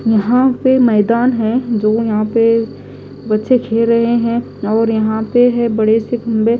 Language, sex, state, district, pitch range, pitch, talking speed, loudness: Hindi, female, Delhi, New Delhi, 220-240 Hz, 230 Hz, 165 wpm, -14 LUFS